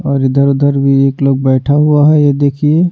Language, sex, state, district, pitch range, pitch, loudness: Hindi, male, Bihar, Patna, 135-150 Hz, 140 Hz, -11 LUFS